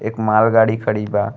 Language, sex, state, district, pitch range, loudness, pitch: Bhojpuri, male, Uttar Pradesh, Gorakhpur, 105-110 Hz, -16 LUFS, 110 Hz